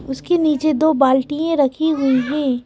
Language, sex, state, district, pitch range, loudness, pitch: Hindi, female, Madhya Pradesh, Bhopal, 265-315 Hz, -17 LUFS, 290 Hz